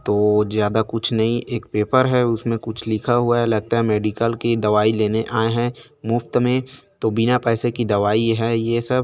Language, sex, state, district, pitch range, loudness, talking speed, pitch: Chhattisgarhi, male, Chhattisgarh, Korba, 110-120 Hz, -20 LUFS, 200 wpm, 115 Hz